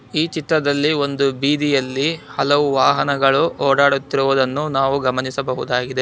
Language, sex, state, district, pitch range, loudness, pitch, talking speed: Kannada, male, Karnataka, Bangalore, 135-145 Hz, -18 LUFS, 140 Hz, 90 wpm